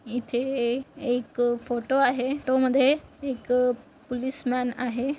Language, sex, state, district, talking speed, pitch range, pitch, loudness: Marathi, female, Maharashtra, Nagpur, 105 wpm, 245-270 Hz, 250 Hz, -26 LUFS